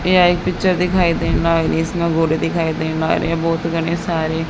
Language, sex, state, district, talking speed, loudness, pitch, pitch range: Hindi, female, Haryana, Jhajjar, 225 wpm, -17 LUFS, 165 Hz, 165-175 Hz